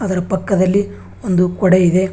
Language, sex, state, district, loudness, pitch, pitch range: Kannada, male, Karnataka, Bangalore, -15 LUFS, 185 Hz, 180-190 Hz